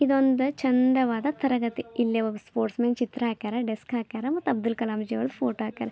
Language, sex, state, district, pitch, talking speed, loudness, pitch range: Kannada, female, Karnataka, Belgaum, 240 Hz, 180 wpm, -27 LUFS, 225-260 Hz